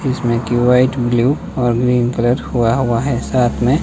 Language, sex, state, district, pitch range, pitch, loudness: Hindi, male, Himachal Pradesh, Shimla, 120-130 Hz, 125 Hz, -15 LUFS